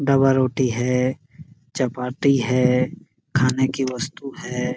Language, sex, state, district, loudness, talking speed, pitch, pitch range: Hindi, male, Chhattisgarh, Sarguja, -21 LUFS, 115 wpm, 130 Hz, 125-140 Hz